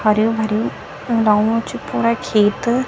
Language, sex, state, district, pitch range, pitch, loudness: Garhwali, female, Uttarakhand, Tehri Garhwal, 215-230 Hz, 220 Hz, -18 LUFS